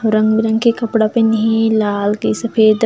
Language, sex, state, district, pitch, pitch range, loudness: Chhattisgarhi, female, Chhattisgarh, Jashpur, 220 Hz, 215-225 Hz, -15 LUFS